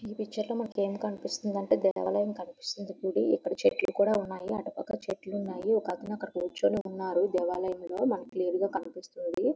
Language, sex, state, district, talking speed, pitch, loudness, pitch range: Telugu, female, Andhra Pradesh, Visakhapatnam, 145 wpm, 200 Hz, -31 LUFS, 185-215 Hz